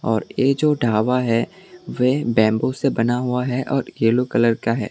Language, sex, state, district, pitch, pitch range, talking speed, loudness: Hindi, male, Tripura, West Tripura, 125 Hz, 115-135 Hz, 195 wpm, -20 LUFS